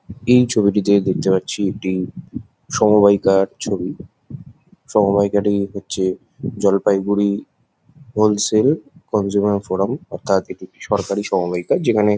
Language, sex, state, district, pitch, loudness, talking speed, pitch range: Bengali, male, West Bengal, Jalpaiguri, 100 Hz, -18 LUFS, 90 wpm, 95-105 Hz